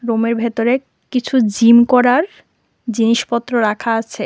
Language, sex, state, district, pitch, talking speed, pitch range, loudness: Bengali, female, Tripura, West Tripura, 235 Hz, 110 wpm, 230-250 Hz, -15 LUFS